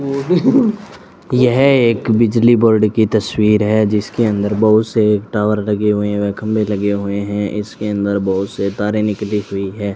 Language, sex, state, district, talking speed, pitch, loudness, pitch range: Hindi, male, Rajasthan, Bikaner, 170 wpm, 105 Hz, -15 LUFS, 105-115 Hz